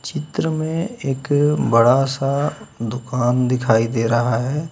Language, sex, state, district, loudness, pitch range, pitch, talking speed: Hindi, male, Uttar Pradesh, Lucknow, -19 LUFS, 120-145 Hz, 135 Hz, 125 wpm